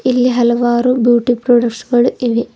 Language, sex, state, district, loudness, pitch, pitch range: Kannada, female, Karnataka, Bidar, -13 LUFS, 240 Hz, 240-250 Hz